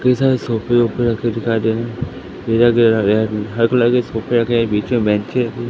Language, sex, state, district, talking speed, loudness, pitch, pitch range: Hindi, male, Madhya Pradesh, Katni, 240 wpm, -17 LUFS, 115 Hz, 110-120 Hz